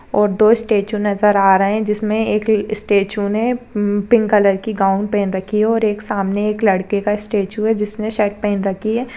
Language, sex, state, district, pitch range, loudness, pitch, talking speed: Hindi, female, Maharashtra, Dhule, 200-220 Hz, -17 LUFS, 210 Hz, 210 wpm